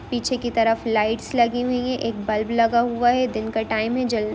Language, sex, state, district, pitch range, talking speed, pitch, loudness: Hindi, female, Bihar, East Champaran, 220-245 Hz, 235 wpm, 235 Hz, -22 LUFS